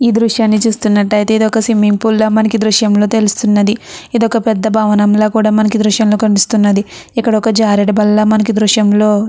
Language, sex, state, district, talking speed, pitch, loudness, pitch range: Telugu, female, Andhra Pradesh, Chittoor, 200 wpm, 215 Hz, -11 LUFS, 210-220 Hz